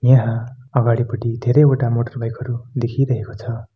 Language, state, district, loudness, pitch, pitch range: Nepali, West Bengal, Darjeeling, -19 LUFS, 120 Hz, 115-125 Hz